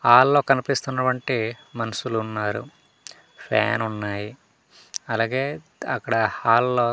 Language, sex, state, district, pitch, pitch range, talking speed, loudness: Telugu, male, Andhra Pradesh, Manyam, 120 Hz, 110-130 Hz, 70 wpm, -23 LUFS